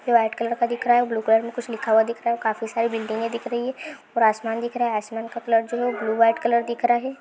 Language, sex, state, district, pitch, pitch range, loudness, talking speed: Hindi, female, Rajasthan, Churu, 235 Hz, 225-240 Hz, -23 LUFS, 315 wpm